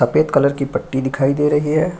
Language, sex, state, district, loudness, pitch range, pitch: Hindi, male, Bihar, Lakhisarai, -17 LUFS, 135-155 Hz, 140 Hz